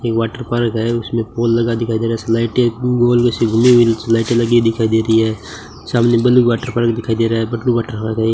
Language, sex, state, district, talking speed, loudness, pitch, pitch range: Hindi, male, Rajasthan, Bikaner, 210 wpm, -15 LUFS, 115 Hz, 115-120 Hz